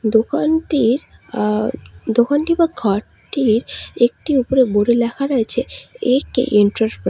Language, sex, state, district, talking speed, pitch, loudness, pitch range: Bengali, female, West Bengal, Alipurduar, 110 wpm, 245 Hz, -17 LUFS, 220-285 Hz